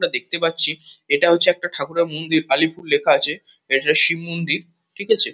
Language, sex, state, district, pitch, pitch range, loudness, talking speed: Bengali, male, West Bengal, Kolkata, 170 Hz, 160-175 Hz, -17 LUFS, 180 wpm